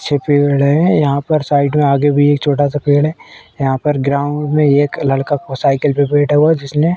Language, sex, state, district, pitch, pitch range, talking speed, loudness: Hindi, female, Uttar Pradesh, Etah, 145 Hz, 140-150 Hz, 240 wpm, -14 LUFS